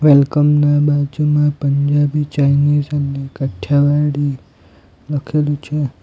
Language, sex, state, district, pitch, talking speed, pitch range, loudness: Gujarati, male, Gujarat, Valsad, 145 Hz, 90 wpm, 140-150 Hz, -16 LUFS